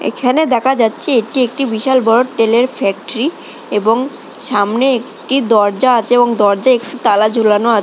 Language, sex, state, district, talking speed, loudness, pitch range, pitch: Bengali, female, West Bengal, Dakshin Dinajpur, 155 wpm, -13 LUFS, 220-260 Hz, 240 Hz